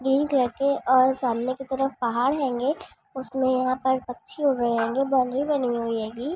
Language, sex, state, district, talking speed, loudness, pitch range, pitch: Hindi, female, Andhra Pradesh, Chittoor, 285 wpm, -24 LUFS, 245-275 Hz, 260 Hz